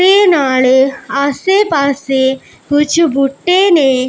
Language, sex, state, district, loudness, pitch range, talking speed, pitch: Punjabi, female, Punjab, Pathankot, -12 LUFS, 265-345 Hz, 100 wpm, 280 Hz